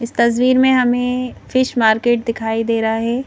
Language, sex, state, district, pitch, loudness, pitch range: Hindi, female, Madhya Pradesh, Bhopal, 240 Hz, -16 LUFS, 230-250 Hz